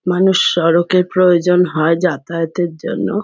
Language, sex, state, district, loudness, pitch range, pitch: Bengali, female, West Bengal, Kolkata, -15 LUFS, 165-185 Hz, 180 Hz